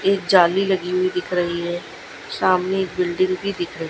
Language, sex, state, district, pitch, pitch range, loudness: Hindi, female, Gujarat, Gandhinagar, 185 Hz, 175-190 Hz, -20 LUFS